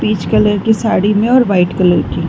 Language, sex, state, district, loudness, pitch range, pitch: Hindi, female, Bihar, Darbhanga, -12 LUFS, 190-220 Hz, 210 Hz